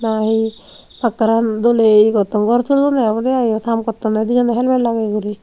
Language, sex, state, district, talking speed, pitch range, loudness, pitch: Chakma, female, Tripura, Unakoti, 175 wpm, 220-240 Hz, -15 LUFS, 225 Hz